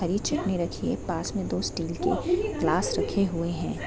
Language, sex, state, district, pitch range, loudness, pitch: Hindi, female, Bihar, Sitamarhi, 170-200 Hz, -28 LUFS, 190 Hz